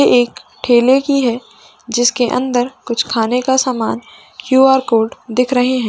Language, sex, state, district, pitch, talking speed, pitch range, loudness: Hindi, female, Uttar Pradesh, Jalaun, 245 Hz, 165 wpm, 235-260 Hz, -14 LUFS